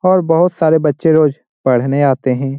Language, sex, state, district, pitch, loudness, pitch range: Hindi, male, Bihar, Jamui, 150 Hz, -14 LUFS, 135-165 Hz